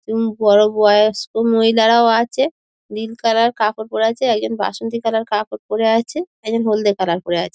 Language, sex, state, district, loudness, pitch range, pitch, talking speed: Bengali, female, West Bengal, Dakshin Dinajpur, -17 LUFS, 215-230 Hz, 225 Hz, 160 wpm